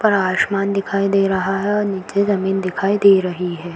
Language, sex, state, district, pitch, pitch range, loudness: Hindi, female, Uttar Pradesh, Varanasi, 195 Hz, 190-200 Hz, -18 LUFS